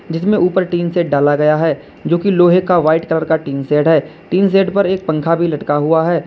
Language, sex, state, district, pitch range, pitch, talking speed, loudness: Hindi, male, Uttar Pradesh, Lalitpur, 155-180 Hz, 165 Hz, 250 wpm, -14 LUFS